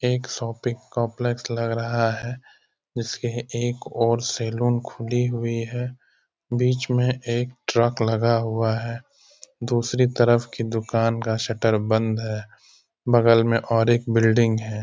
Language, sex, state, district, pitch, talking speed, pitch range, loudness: Hindi, male, Bihar, Sitamarhi, 115 Hz, 135 wpm, 115-120 Hz, -23 LUFS